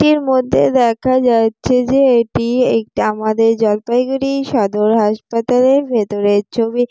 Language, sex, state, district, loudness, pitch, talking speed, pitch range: Bengali, female, West Bengal, Jalpaiguri, -14 LUFS, 235 Hz, 115 wpm, 220-255 Hz